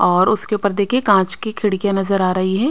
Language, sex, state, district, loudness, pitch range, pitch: Hindi, female, Haryana, Rohtak, -17 LUFS, 190-210 Hz, 200 Hz